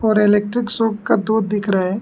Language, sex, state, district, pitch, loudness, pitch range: Hindi, male, Arunachal Pradesh, Lower Dibang Valley, 215 Hz, -18 LUFS, 205-225 Hz